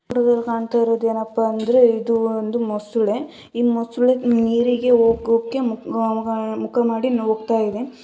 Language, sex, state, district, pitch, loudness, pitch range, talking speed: Kannada, female, Karnataka, Gulbarga, 230 Hz, -19 LUFS, 225-240 Hz, 120 wpm